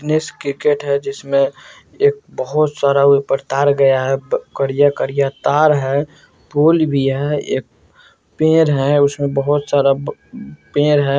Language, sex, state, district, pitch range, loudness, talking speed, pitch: Bajjika, male, Bihar, Vaishali, 140-150 Hz, -16 LUFS, 120 wpm, 140 Hz